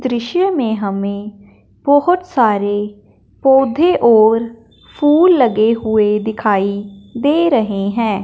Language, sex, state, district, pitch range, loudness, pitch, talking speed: Hindi, female, Punjab, Fazilka, 205-275 Hz, -14 LUFS, 225 Hz, 100 wpm